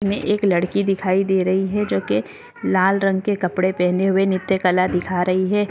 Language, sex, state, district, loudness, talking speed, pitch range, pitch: Hindi, female, Goa, North and South Goa, -19 LUFS, 200 wpm, 185-200 Hz, 190 Hz